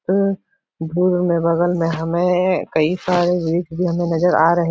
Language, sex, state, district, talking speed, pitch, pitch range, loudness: Hindi, male, Uttar Pradesh, Etah, 180 wpm, 175 Hz, 165-180 Hz, -18 LUFS